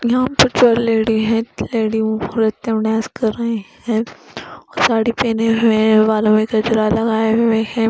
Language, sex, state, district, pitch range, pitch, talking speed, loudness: Hindi, female, Punjab, Pathankot, 220-230 Hz, 225 Hz, 165 wpm, -16 LUFS